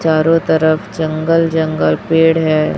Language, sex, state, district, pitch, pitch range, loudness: Hindi, female, Chhattisgarh, Raipur, 160 Hz, 155-165 Hz, -14 LUFS